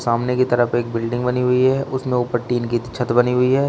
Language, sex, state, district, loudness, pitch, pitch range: Hindi, male, Uttar Pradesh, Shamli, -19 LUFS, 125 Hz, 120-125 Hz